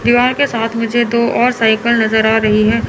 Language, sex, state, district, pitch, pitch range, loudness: Hindi, male, Chandigarh, Chandigarh, 230 Hz, 220-240 Hz, -13 LUFS